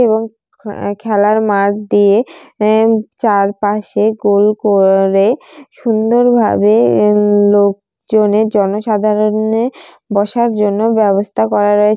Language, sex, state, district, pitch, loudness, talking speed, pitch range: Bengali, female, West Bengal, Jalpaiguri, 210 Hz, -13 LUFS, 95 wpm, 205-220 Hz